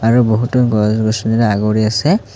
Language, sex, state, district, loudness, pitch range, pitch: Assamese, male, Assam, Kamrup Metropolitan, -14 LUFS, 110-120 Hz, 110 Hz